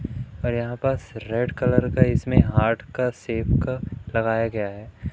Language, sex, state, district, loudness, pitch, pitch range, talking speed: Hindi, male, Madhya Pradesh, Umaria, -23 LUFS, 120 Hz, 110-125 Hz, 165 wpm